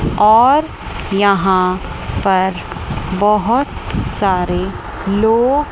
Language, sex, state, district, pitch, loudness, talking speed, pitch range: Hindi, female, Chandigarh, Chandigarh, 200 Hz, -15 LUFS, 65 wpm, 190-230 Hz